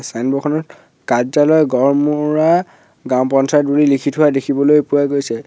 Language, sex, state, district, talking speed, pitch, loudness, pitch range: Assamese, male, Assam, Sonitpur, 130 wpm, 145 Hz, -15 LUFS, 135-150 Hz